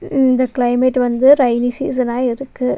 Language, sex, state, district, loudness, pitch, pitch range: Tamil, female, Tamil Nadu, Nilgiris, -15 LUFS, 255 Hz, 245-255 Hz